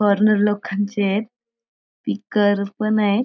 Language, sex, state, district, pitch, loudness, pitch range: Marathi, female, Maharashtra, Aurangabad, 210 Hz, -20 LUFS, 205-215 Hz